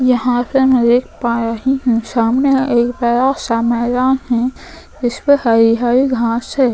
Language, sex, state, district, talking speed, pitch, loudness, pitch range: Hindi, female, Goa, North and South Goa, 180 wpm, 245 Hz, -15 LUFS, 235-260 Hz